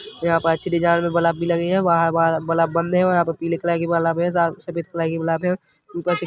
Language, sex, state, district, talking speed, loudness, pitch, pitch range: Hindi, male, Chhattisgarh, Rajnandgaon, 260 wpm, -20 LUFS, 170 Hz, 165-175 Hz